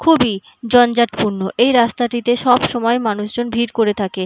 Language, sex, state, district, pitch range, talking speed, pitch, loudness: Bengali, female, West Bengal, Purulia, 210-240 Hz, 125 wpm, 235 Hz, -16 LUFS